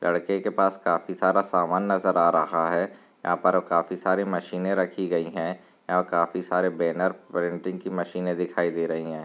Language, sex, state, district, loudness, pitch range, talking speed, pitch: Hindi, male, Uttar Pradesh, Varanasi, -25 LUFS, 85-95 Hz, 190 wpm, 90 Hz